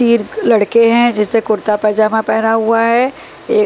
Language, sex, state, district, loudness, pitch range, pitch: Hindi, female, Punjab, Pathankot, -13 LUFS, 215-235 Hz, 225 Hz